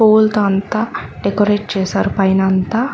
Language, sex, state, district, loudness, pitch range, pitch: Telugu, female, Andhra Pradesh, Chittoor, -16 LUFS, 190-215 Hz, 205 Hz